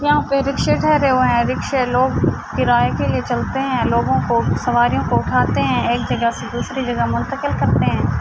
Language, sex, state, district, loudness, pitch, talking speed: Urdu, female, Andhra Pradesh, Anantapur, -18 LUFS, 245 Hz, 195 wpm